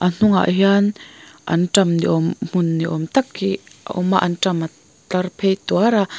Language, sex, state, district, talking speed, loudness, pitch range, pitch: Mizo, female, Mizoram, Aizawl, 195 wpm, -19 LUFS, 175-195 Hz, 185 Hz